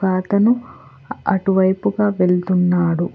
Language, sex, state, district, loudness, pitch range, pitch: Telugu, female, Telangana, Hyderabad, -17 LUFS, 180-200 Hz, 190 Hz